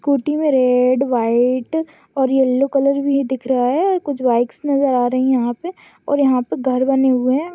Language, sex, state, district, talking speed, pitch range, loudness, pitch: Hindi, female, Maharashtra, Pune, 190 wpm, 250-280 Hz, -17 LUFS, 265 Hz